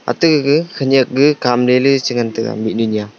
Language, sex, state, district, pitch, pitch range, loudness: Wancho, male, Arunachal Pradesh, Longding, 125 Hz, 115-140 Hz, -14 LUFS